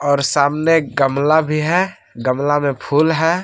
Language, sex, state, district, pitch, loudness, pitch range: Hindi, male, Jharkhand, Palamu, 145 Hz, -16 LUFS, 140-160 Hz